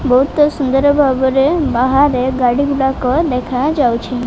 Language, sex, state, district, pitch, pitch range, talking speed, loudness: Odia, female, Odisha, Malkangiri, 265 Hz, 250-285 Hz, 125 wpm, -14 LUFS